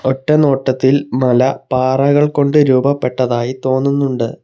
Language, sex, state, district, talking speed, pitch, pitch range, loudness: Malayalam, male, Kerala, Kollam, 80 wpm, 130 Hz, 130-140 Hz, -14 LUFS